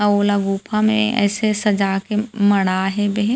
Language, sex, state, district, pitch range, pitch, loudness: Chhattisgarhi, female, Chhattisgarh, Rajnandgaon, 200-215 Hz, 205 Hz, -18 LUFS